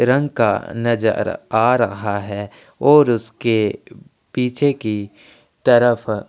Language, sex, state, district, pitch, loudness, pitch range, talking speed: Hindi, male, Chhattisgarh, Sukma, 115 Hz, -18 LUFS, 105-125 Hz, 105 wpm